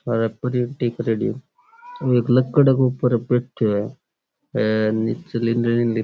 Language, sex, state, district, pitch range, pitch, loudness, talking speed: Rajasthani, male, Rajasthan, Churu, 115-130 Hz, 120 Hz, -21 LUFS, 120 wpm